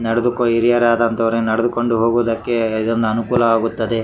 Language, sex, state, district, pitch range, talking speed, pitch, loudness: Kannada, male, Karnataka, Raichur, 115-120 Hz, 105 wpm, 115 Hz, -17 LUFS